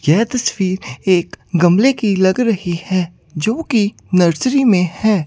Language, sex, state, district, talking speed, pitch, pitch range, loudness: Hindi, female, Chandigarh, Chandigarh, 150 wpm, 190 Hz, 175-225 Hz, -16 LUFS